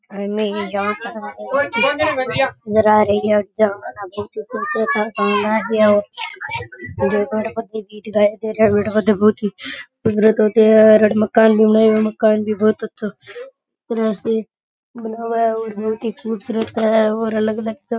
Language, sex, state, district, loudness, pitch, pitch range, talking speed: Rajasthani, male, Rajasthan, Nagaur, -17 LUFS, 220 Hz, 210-225 Hz, 45 wpm